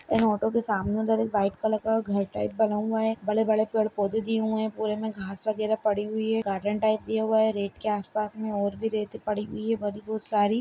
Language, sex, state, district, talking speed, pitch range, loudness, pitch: Hindi, female, Chhattisgarh, Sarguja, 260 wpm, 210-220 Hz, -27 LUFS, 215 Hz